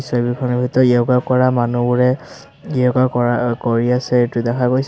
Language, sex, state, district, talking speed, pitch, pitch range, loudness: Assamese, male, Assam, Sonitpur, 135 wpm, 125 Hz, 120-130 Hz, -16 LUFS